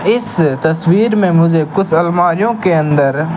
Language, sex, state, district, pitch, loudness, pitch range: Hindi, male, Rajasthan, Bikaner, 170 Hz, -13 LUFS, 160-195 Hz